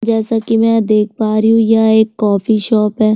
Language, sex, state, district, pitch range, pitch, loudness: Hindi, female, Chhattisgarh, Sukma, 215-225 Hz, 220 Hz, -13 LUFS